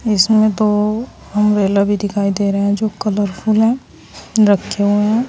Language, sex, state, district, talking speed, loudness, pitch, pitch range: Hindi, female, Uttar Pradesh, Saharanpur, 160 wpm, -16 LUFS, 210 Hz, 200-215 Hz